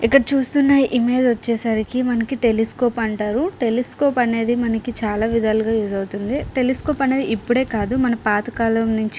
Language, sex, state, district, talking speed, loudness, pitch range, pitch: Telugu, female, Andhra Pradesh, Srikakulam, 135 wpm, -19 LUFS, 225-255 Hz, 235 Hz